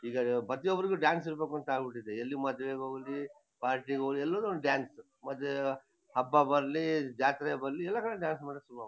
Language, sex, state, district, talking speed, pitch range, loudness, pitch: Kannada, male, Karnataka, Shimoga, 160 wpm, 130-150 Hz, -33 LUFS, 140 Hz